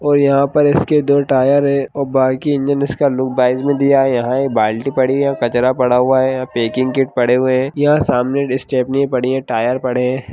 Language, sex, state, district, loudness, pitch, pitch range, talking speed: Hindi, male, Bihar, Lakhisarai, -15 LUFS, 130 Hz, 125-140 Hz, 245 wpm